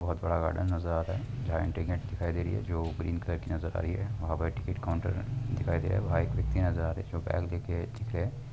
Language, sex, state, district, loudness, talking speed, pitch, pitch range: Hindi, male, Uttar Pradesh, Muzaffarnagar, -33 LUFS, 300 wpm, 85 Hz, 85-100 Hz